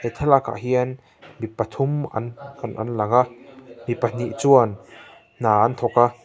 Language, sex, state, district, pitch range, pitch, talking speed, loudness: Mizo, male, Mizoram, Aizawl, 115-130 Hz, 120 Hz, 155 wpm, -21 LUFS